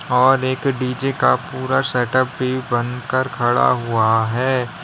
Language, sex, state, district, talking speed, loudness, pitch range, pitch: Hindi, male, Uttar Pradesh, Lalitpur, 135 wpm, -18 LUFS, 120-130 Hz, 125 Hz